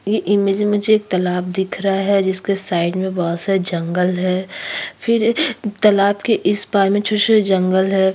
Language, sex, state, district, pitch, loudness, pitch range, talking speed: Hindi, female, Chhattisgarh, Kabirdham, 195 Hz, -17 LUFS, 185-210 Hz, 200 wpm